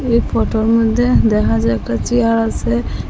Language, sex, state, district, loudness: Bengali, female, Assam, Hailakandi, -15 LUFS